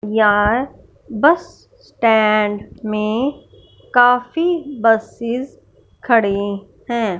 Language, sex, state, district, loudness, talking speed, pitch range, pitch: Hindi, female, Punjab, Fazilka, -17 LUFS, 65 wpm, 215-255 Hz, 230 Hz